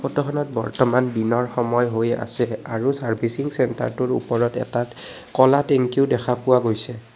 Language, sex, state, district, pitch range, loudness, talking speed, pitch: Assamese, male, Assam, Kamrup Metropolitan, 115-130 Hz, -21 LUFS, 135 wpm, 125 Hz